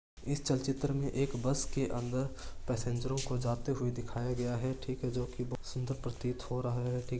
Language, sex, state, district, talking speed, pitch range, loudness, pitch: Marwari, male, Rajasthan, Churu, 225 wpm, 120-130 Hz, -36 LUFS, 125 Hz